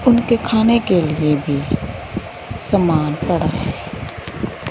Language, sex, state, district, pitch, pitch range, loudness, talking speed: Hindi, female, Punjab, Fazilka, 165 Hz, 150-220 Hz, -18 LUFS, 100 wpm